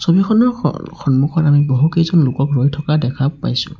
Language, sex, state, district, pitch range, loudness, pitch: Assamese, male, Assam, Sonitpur, 135-170 Hz, -15 LUFS, 150 Hz